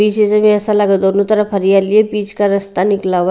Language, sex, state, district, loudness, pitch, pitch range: Hindi, female, Haryana, Rohtak, -13 LUFS, 205 Hz, 195-210 Hz